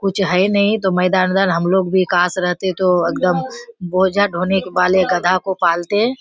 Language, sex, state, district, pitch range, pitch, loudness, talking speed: Hindi, female, Bihar, Kishanganj, 180-195 Hz, 185 Hz, -16 LUFS, 175 wpm